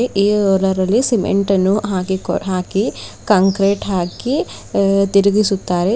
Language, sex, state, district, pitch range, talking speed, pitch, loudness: Kannada, female, Karnataka, Bidar, 190-205 Hz, 120 wpm, 195 Hz, -16 LUFS